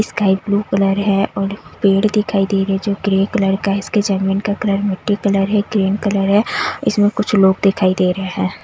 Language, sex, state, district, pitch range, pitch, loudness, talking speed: Hindi, female, Delhi, New Delhi, 195-205 Hz, 195 Hz, -16 LUFS, 220 wpm